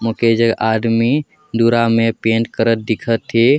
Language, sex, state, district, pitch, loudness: Sadri, male, Chhattisgarh, Jashpur, 115 Hz, -16 LUFS